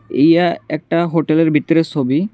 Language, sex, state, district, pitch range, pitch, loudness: Bengali, male, Tripura, West Tripura, 155-170 Hz, 165 Hz, -15 LUFS